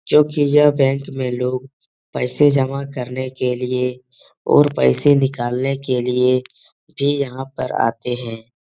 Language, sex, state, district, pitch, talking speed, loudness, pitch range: Hindi, male, Uttar Pradesh, Etah, 130 Hz, 140 wpm, -18 LUFS, 125-140 Hz